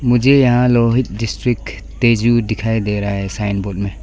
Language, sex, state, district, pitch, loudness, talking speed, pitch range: Hindi, female, Arunachal Pradesh, Lower Dibang Valley, 115 Hz, -16 LUFS, 180 wpm, 100-120 Hz